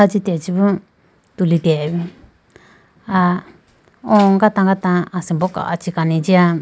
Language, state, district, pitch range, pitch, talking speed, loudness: Idu Mishmi, Arunachal Pradesh, Lower Dibang Valley, 170-195 Hz, 180 Hz, 90 wpm, -17 LUFS